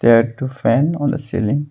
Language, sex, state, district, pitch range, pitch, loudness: English, male, Arunachal Pradesh, Longding, 120-145 Hz, 135 Hz, -18 LUFS